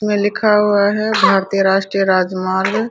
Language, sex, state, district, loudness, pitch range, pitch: Hindi, female, Bihar, Araria, -15 LUFS, 190-210 Hz, 200 Hz